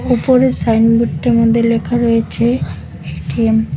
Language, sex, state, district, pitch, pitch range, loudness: Bengali, female, West Bengal, Cooch Behar, 230 Hz, 230-240 Hz, -14 LUFS